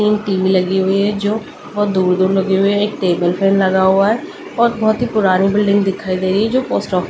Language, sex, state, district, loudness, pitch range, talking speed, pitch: Hindi, female, Delhi, New Delhi, -15 LUFS, 190-210 Hz, 245 wpm, 195 Hz